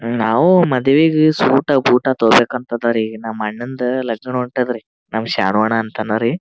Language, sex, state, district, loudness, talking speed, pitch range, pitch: Kannada, male, Karnataka, Gulbarga, -16 LUFS, 160 wpm, 110-130 Hz, 120 Hz